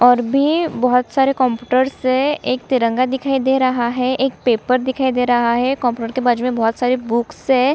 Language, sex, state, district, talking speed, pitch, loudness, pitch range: Hindi, female, Chhattisgarh, Kabirdham, 200 wpm, 255 Hz, -17 LUFS, 245-265 Hz